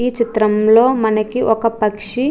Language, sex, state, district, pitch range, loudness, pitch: Telugu, female, Andhra Pradesh, Chittoor, 215-240 Hz, -15 LUFS, 225 Hz